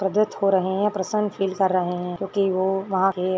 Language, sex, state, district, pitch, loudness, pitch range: Hindi, female, Rajasthan, Churu, 190 Hz, -23 LUFS, 185-195 Hz